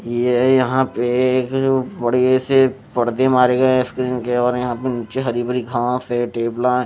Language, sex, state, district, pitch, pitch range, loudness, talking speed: Hindi, male, Himachal Pradesh, Shimla, 125 Hz, 120-130 Hz, -18 LUFS, 165 wpm